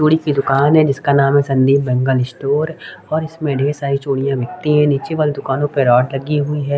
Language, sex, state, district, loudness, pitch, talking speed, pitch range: Hindi, male, Haryana, Rohtak, -16 LUFS, 140 Hz, 210 wpm, 135-150 Hz